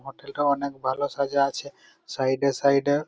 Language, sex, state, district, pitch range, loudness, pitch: Bengali, male, West Bengal, Malda, 135-140 Hz, -25 LUFS, 140 Hz